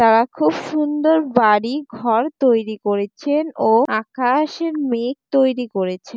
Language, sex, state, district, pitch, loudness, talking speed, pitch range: Bengali, female, West Bengal, Jalpaiguri, 245 Hz, -18 LUFS, 115 wpm, 220-295 Hz